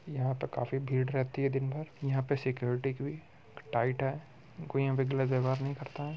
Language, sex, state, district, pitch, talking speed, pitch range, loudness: Hindi, male, Bihar, Muzaffarpur, 135 Hz, 225 wpm, 130-140 Hz, -33 LUFS